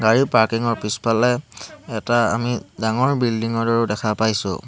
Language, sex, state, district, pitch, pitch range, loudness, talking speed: Assamese, male, Assam, Hailakandi, 115 Hz, 110-120 Hz, -20 LUFS, 155 wpm